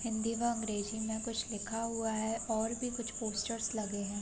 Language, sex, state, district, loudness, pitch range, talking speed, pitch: Hindi, female, Bihar, Sitamarhi, -35 LUFS, 215-230 Hz, 215 wpm, 225 Hz